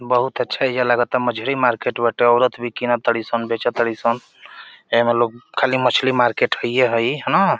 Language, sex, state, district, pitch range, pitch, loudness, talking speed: Bhojpuri, male, Uttar Pradesh, Deoria, 115-125 Hz, 120 Hz, -19 LUFS, 195 wpm